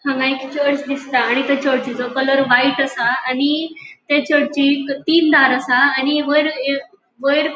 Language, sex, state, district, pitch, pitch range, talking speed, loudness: Konkani, female, Goa, North and South Goa, 275 Hz, 265-290 Hz, 165 wpm, -16 LUFS